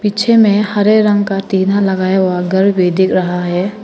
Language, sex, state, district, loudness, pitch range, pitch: Hindi, female, Arunachal Pradesh, Papum Pare, -13 LUFS, 185-205 Hz, 195 Hz